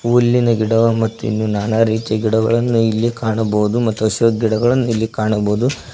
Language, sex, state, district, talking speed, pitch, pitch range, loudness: Kannada, male, Karnataka, Koppal, 140 wpm, 110 Hz, 110-115 Hz, -16 LUFS